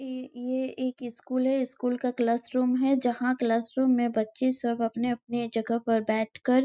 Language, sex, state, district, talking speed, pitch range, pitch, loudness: Hindi, female, Chhattisgarh, Bastar, 180 wpm, 235-255 Hz, 245 Hz, -28 LUFS